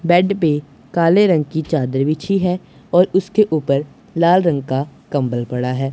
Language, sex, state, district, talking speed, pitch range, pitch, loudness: Hindi, male, Punjab, Pathankot, 170 wpm, 140-180 Hz, 160 Hz, -17 LUFS